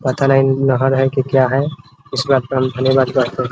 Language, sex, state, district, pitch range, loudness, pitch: Hindi, male, Bihar, Muzaffarpur, 130-135 Hz, -16 LUFS, 135 Hz